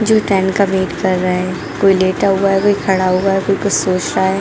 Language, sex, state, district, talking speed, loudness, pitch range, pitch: Hindi, female, Jharkhand, Jamtara, 270 wpm, -15 LUFS, 185-195 Hz, 190 Hz